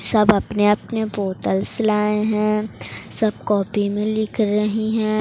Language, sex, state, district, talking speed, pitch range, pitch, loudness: Hindi, female, Odisha, Sambalpur, 140 wpm, 205-215 Hz, 210 Hz, -19 LUFS